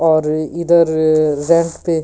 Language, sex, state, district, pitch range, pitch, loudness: Hindi, female, Delhi, New Delhi, 155-170 Hz, 160 Hz, -15 LUFS